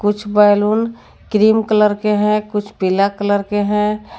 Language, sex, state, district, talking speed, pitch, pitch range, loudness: Hindi, female, Jharkhand, Garhwa, 155 wpm, 210 Hz, 205-215 Hz, -16 LUFS